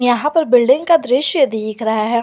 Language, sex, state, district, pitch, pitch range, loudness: Hindi, female, Jharkhand, Garhwa, 250 Hz, 230-295 Hz, -15 LUFS